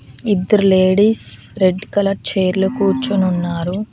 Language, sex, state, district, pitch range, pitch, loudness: Telugu, female, Andhra Pradesh, Annamaya, 185-205 Hz, 195 Hz, -16 LUFS